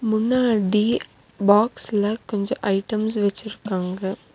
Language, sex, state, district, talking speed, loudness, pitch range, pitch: Tamil, female, Tamil Nadu, Nilgiris, 70 wpm, -22 LUFS, 200-225 Hz, 210 Hz